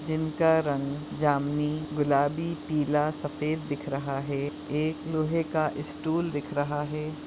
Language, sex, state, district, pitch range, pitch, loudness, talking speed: Hindi, female, Goa, North and South Goa, 145-155 Hz, 150 Hz, -28 LUFS, 130 wpm